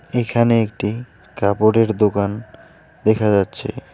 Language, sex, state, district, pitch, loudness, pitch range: Bengali, male, West Bengal, Alipurduar, 110 Hz, -18 LUFS, 100-115 Hz